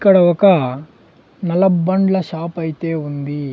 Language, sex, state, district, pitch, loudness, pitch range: Telugu, male, Andhra Pradesh, Sri Satya Sai, 170 Hz, -16 LUFS, 155-190 Hz